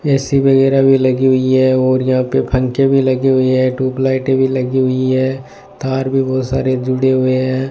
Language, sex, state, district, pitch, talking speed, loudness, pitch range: Hindi, male, Rajasthan, Bikaner, 130 Hz, 200 wpm, -14 LUFS, 130-135 Hz